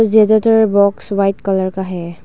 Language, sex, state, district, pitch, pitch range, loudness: Hindi, female, Arunachal Pradesh, Longding, 200 Hz, 190-220 Hz, -14 LUFS